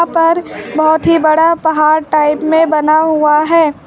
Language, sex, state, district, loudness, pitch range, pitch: Hindi, female, Uttar Pradesh, Lucknow, -11 LUFS, 305-330 Hz, 315 Hz